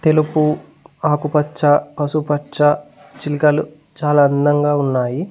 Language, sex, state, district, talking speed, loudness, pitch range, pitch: Telugu, male, Telangana, Mahabubabad, 90 wpm, -17 LUFS, 145-155 Hz, 150 Hz